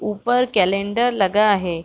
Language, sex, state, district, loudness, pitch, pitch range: Hindi, female, Chhattisgarh, Raigarh, -18 LUFS, 205 Hz, 195-235 Hz